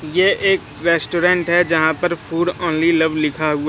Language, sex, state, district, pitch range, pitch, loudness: Hindi, male, Madhya Pradesh, Katni, 155-175 Hz, 170 Hz, -15 LUFS